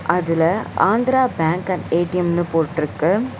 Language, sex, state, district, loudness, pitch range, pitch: Tamil, female, Tamil Nadu, Chennai, -19 LUFS, 165-195 Hz, 175 Hz